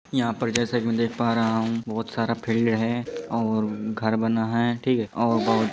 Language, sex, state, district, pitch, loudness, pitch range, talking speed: Hindi, male, Uttar Pradesh, Etah, 115 Hz, -24 LUFS, 110-115 Hz, 230 wpm